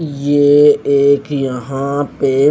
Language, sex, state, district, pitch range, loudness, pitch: Hindi, male, Chandigarh, Chandigarh, 140-145 Hz, -13 LUFS, 140 Hz